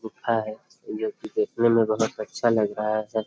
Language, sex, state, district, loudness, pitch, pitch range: Hindi, male, Bihar, Jamui, -25 LUFS, 110 Hz, 110-120 Hz